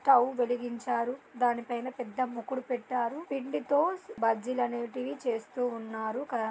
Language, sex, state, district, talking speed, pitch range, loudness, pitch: Telugu, female, Andhra Pradesh, Guntur, 120 wpm, 235-260 Hz, -32 LUFS, 245 Hz